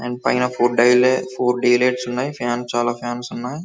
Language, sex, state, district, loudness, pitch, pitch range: Telugu, male, Telangana, Karimnagar, -19 LUFS, 125 Hz, 120-125 Hz